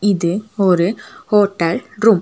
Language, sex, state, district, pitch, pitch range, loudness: Tamil, female, Tamil Nadu, Nilgiris, 200 Hz, 175-210 Hz, -17 LUFS